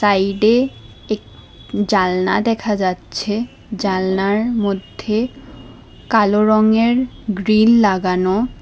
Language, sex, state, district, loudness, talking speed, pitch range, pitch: Bengali, female, Assam, Hailakandi, -17 LUFS, 75 wpm, 195-220 Hz, 210 Hz